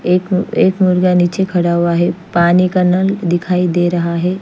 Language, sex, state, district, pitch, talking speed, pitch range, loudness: Hindi, female, Chandigarh, Chandigarh, 180 Hz, 190 wpm, 175-185 Hz, -14 LUFS